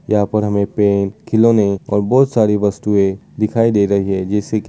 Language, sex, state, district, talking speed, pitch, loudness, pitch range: Hindi, male, Uttar Pradesh, Muzaffarnagar, 205 wpm, 105 Hz, -15 LUFS, 100-110 Hz